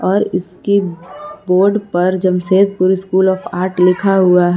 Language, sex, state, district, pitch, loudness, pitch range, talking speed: Hindi, female, Jharkhand, Palamu, 185 Hz, -14 LUFS, 180-195 Hz, 145 wpm